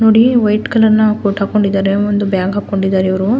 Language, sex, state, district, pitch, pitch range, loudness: Kannada, female, Karnataka, Mysore, 205 Hz, 195-220 Hz, -13 LUFS